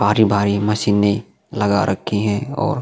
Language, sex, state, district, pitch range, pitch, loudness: Hindi, male, Uttar Pradesh, Jalaun, 100-110 Hz, 105 Hz, -18 LUFS